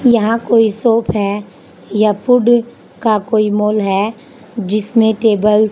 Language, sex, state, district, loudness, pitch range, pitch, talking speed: Hindi, female, Haryana, Charkhi Dadri, -14 LUFS, 210-230 Hz, 215 Hz, 135 wpm